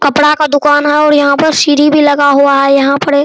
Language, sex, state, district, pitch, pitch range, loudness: Hindi, male, Bihar, Araria, 290 Hz, 280-295 Hz, -9 LUFS